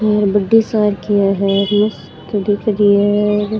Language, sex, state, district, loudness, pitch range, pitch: Rajasthani, female, Rajasthan, Churu, -15 LUFS, 200-210 Hz, 205 Hz